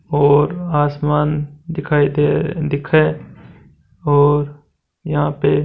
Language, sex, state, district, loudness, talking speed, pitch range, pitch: Hindi, male, Rajasthan, Churu, -17 LUFS, 105 wpm, 145-150 Hz, 145 Hz